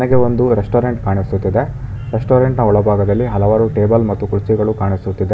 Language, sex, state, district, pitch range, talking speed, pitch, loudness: Kannada, male, Karnataka, Bangalore, 100-120 Hz, 125 wpm, 110 Hz, -15 LUFS